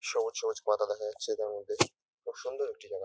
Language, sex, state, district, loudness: Bengali, male, West Bengal, North 24 Parganas, -33 LUFS